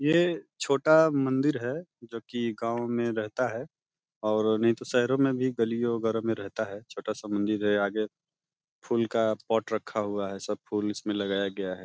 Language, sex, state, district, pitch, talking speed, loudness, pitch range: Hindi, male, Uttar Pradesh, Deoria, 115 Hz, 180 wpm, -28 LUFS, 105-130 Hz